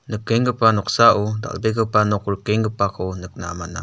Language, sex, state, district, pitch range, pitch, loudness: Garo, male, Meghalaya, South Garo Hills, 100-115 Hz, 105 Hz, -20 LUFS